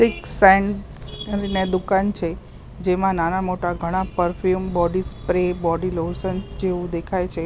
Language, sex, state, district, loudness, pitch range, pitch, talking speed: Gujarati, female, Maharashtra, Mumbai Suburban, -21 LUFS, 175-190 Hz, 185 Hz, 130 wpm